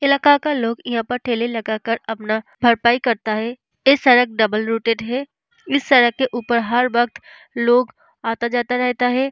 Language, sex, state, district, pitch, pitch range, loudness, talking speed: Hindi, female, Bihar, Vaishali, 240 Hz, 230-260 Hz, -18 LUFS, 175 wpm